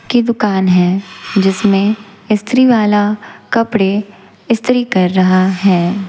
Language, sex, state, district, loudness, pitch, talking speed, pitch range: Hindi, female, Chhattisgarh, Raipur, -13 LUFS, 205 Hz, 100 wpm, 190-220 Hz